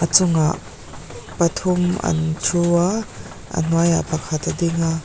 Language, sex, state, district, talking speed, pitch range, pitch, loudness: Mizo, female, Mizoram, Aizawl, 155 wpm, 160-175 Hz, 170 Hz, -20 LUFS